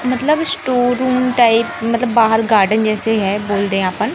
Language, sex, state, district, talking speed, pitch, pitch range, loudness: Hindi, male, Madhya Pradesh, Katni, 175 wpm, 230 Hz, 215-250 Hz, -14 LUFS